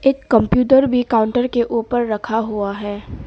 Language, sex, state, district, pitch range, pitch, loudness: Hindi, female, Arunachal Pradesh, Papum Pare, 215-250 Hz, 235 Hz, -17 LUFS